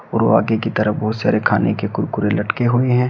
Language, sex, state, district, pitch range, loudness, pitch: Hindi, male, Uttar Pradesh, Shamli, 110-120 Hz, -18 LUFS, 115 Hz